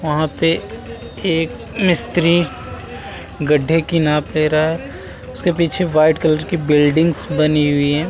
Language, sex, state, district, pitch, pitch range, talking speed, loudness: Hindi, male, Uttar Pradesh, Muzaffarnagar, 155 Hz, 145-165 Hz, 140 wpm, -16 LUFS